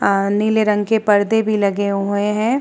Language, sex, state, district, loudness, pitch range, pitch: Hindi, female, Uttar Pradesh, Muzaffarnagar, -17 LUFS, 200-220 Hz, 210 Hz